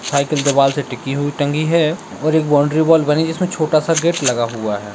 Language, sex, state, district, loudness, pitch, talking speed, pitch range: Hindi, male, Bihar, Madhepura, -16 LUFS, 150 Hz, 230 wpm, 140-160 Hz